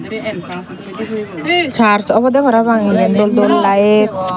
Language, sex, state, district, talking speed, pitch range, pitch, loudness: Chakma, female, Tripura, Unakoti, 95 wpm, 205-225 Hz, 215 Hz, -13 LUFS